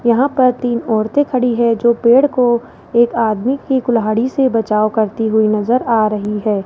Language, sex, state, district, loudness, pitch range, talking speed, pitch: Hindi, male, Rajasthan, Jaipur, -15 LUFS, 220-250 Hz, 190 wpm, 235 Hz